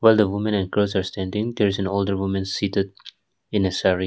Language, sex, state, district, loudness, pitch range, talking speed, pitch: English, male, Nagaland, Kohima, -23 LUFS, 95-105 Hz, 220 wpm, 100 Hz